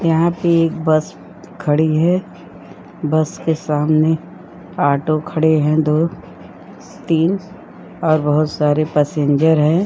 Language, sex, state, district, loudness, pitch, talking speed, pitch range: Hindi, female, Uttar Pradesh, Jyotiba Phule Nagar, -17 LUFS, 155 Hz, 115 wpm, 150-165 Hz